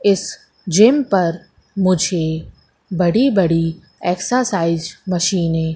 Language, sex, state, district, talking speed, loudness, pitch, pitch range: Hindi, female, Madhya Pradesh, Katni, 95 wpm, -17 LUFS, 180 Hz, 165-195 Hz